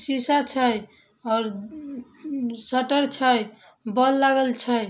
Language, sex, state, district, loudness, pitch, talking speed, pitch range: Maithili, female, Bihar, Samastipur, -23 LUFS, 255 Hz, 110 wpm, 225-270 Hz